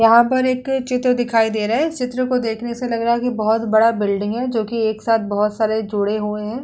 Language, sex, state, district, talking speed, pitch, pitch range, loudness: Hindi, female, Uttar Pradesh, Hamirpur, 260 wpm, 230 Hz, 215-250 Hz, -19 LUFS